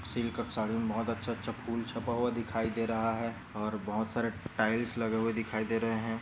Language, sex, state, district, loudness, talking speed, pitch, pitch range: Hindi, male, Maharashtra, Aurangabad, -34 LUFS, 220 wpm, 115 Hz, 110-115 Hz